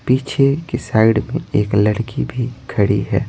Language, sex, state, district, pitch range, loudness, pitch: Hindi, male, Bihar, Patna, 105-135 Hz, -17 LUFS, 120 Hz